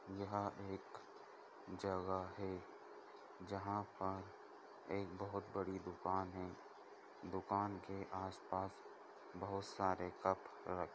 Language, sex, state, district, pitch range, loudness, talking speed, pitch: Hindi, male, Chhattisgarh, Sukma, 95-100 Hz, -45 LUFS, 100 wpm, 95 Hz